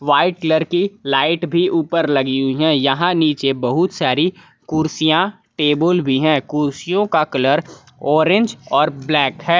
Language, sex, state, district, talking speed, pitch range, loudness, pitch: Hindi, male, Jharkhand, Palamu, 150 wpm, 140-175 Hz, -17 LUFS, 155 Hz